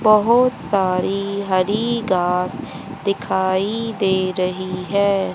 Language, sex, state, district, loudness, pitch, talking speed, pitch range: Hindi, female, Haryana, Rohtak, -19 LUFS, 195 Hz, 90 wpm, 185-210 Hz